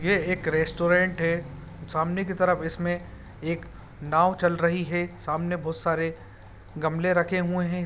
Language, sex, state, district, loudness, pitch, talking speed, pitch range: Hindi, male, Bihar, Saran, -26 LUFS, 170 Hz, 155 wpm, 155-175 Hz